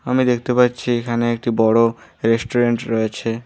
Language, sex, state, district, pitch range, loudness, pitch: Bengali, male, West Bengal, Alipurduar, 115-120 Hz, -18 LUFS, 120 Hz